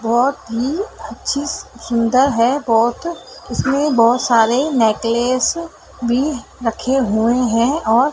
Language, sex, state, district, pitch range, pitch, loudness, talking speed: Hindi, female, Madhya Pradesh, Dhar, 230-280 Hz, 245 Hz, -17 LUFS, 120 wpm